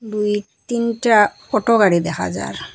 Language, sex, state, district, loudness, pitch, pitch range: Bengali, female, Assam, Hailakandi, -18 LUFS, 215 Hz, 205-230 Hz